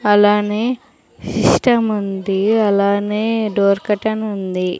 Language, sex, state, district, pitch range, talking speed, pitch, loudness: Telugu, female, Andhra Pradesh, Sri Satya Sai, 200-220 Hz, 85 wpm, 210 Hz, -17 LUFS